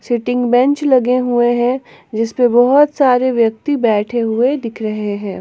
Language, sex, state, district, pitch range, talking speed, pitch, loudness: Hindi, female, Jharkhand, Garhwa, 230-255 Hz, 165 wpm, 245 Hz, -15 LUFS